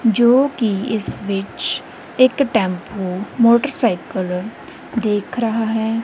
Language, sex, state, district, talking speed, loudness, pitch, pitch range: Punjabi, female, Punjab, Kapurthala, 100 wpm, -18 LUFS, 225 Hz, 195-240 Hz